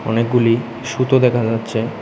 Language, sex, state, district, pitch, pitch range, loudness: Bengali, male, Tripura, West Tripura, 115 Hz, 115-125 Hz, -17 LUFS